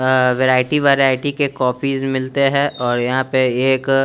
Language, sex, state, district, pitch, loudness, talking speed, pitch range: Hindi, male, Chandigarh, Chandigarh, 130 Hz, -16 LUFS, 165 wpm, 130-140 Hz